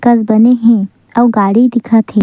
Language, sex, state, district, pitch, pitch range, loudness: Chhattisgarhi, female, Chhattisgarh, Sukma, 230 Hz, 220-240 Hz, -10 LUFS